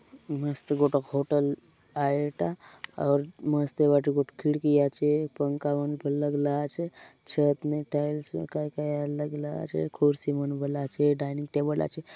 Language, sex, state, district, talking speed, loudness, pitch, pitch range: Halbi, male, Chhattisgarh, Bastar, 170 wpm, -28 LUFS, 145 Hz, 145-150 Hz